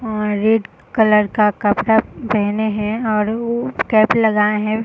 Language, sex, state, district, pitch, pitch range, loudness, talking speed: Hindi, female, Bihar, Darbhanga, 215 Hz, 210-225 Hz, -17 LUFS, 150 wpm